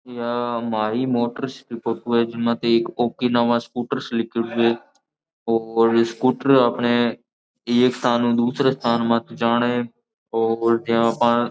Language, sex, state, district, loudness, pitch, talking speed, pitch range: Marwari, male, Rajasthan, Nagaur, -21 LUFS, 120 Hz, 130 wpm, 115-120 Hz